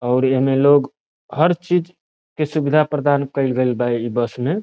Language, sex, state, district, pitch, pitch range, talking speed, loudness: Bhojpuri, male, Bihar, Saran, 140 Hz, 125-155 Hz, 195 wpm, -18 LUFS